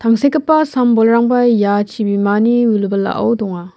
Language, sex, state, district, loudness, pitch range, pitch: Garo, female, Meghalaya, West Garo Hills, -14 LUFS, 205-240 Hz, 230 Hz